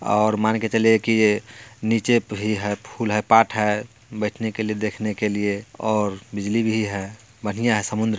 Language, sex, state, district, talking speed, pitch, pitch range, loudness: Bhojpuri, male, Bihar, Muzaffarpur, 175 wpm, 110 Hz, 105-110 Hz, -22 LUFS